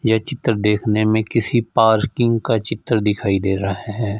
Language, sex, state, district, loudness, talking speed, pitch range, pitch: Hindi, male, Punjab, Fazilka, -18 LUFS, 170 wpm, 105-115 Hz, 110 Hz